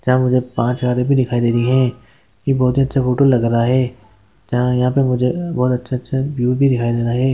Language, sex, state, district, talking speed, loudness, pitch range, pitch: Hindi, male, Andhra Pradesh, Guntur, 245 wpm, -17 LUFS, 120-130 Hz, 125 Hz